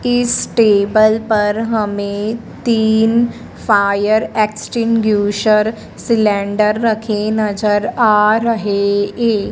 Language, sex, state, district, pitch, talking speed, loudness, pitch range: Hindi, female, Madhya Pradesh, Dhar, 215 Hz, 80 wpm, -15 LUFS, 205-225 Hz